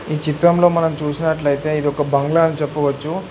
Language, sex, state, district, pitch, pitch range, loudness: Telugu, male, Telangana, Hyderabad, 155 Hz, 145-165 Hz, -18 LUFS